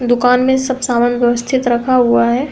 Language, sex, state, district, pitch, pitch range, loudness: Hindi, female, Uttar Pradesh, Hamirpur, 245 Hz, 240-260 Hz, -14 LUFS